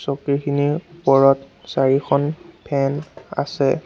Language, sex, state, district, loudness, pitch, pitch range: Assamese, male, Assam, Sonitpur, -20 LUFS, 140 Hz, 135-145 Hz